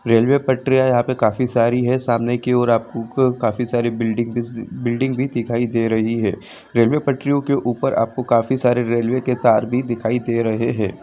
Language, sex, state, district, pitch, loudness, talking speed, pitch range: Hindi, female, Jharkhand, Jamtara, 120 Hz, -19 LUFS, 185 wpm, 115-125 Hz